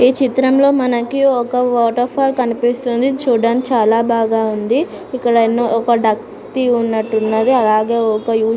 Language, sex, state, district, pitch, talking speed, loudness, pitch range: Telugu, female, Andhra Pradesh, Anantapur, 240 Hz, 140 wpm, -15 LUFS, 225-255 Hz